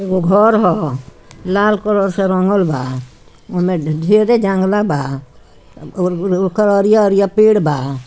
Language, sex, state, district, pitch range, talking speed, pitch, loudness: Bhojpuri, female, Bihar, Muzaffarpur, 155-210 Hz, 155 wpm, 190 Hz, -14 LUFS